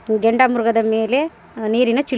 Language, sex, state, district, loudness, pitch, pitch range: Kannada, female, Karnataka, Raichur, -18 LUFS, 235 Hz, 225-255 Hz